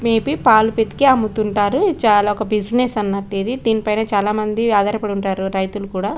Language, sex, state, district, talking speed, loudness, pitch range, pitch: Telugu, female, Telangana, Karimnagar, 165 wpm, -17 LUFS, 205-225 Hz, 215 Hz